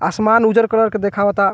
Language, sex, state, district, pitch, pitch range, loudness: Bhojpuri, male, Bihar, Muzaffarpur, 215 Hz, 200-225 Hz, -15 LUFS